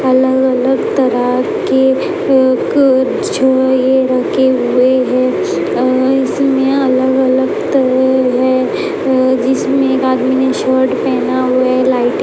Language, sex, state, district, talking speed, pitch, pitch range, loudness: Hindi, female, Uttar Pradesh, Etah, 130 wpm, 260 Hz, 255-265 Hz, -12 LUFS